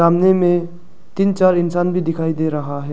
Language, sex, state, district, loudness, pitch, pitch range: Hindi, male, Arunachal Pradesh, Lower Dibang Valley, -17 LUFS, 175 Hz, 160-180 Hz